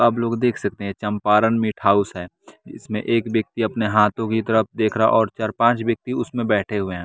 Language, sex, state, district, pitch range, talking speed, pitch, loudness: Hindi, male, Bihar, West Champaran, 105-115 Hz, 220 wpm, 110 Hz, -20 LUFS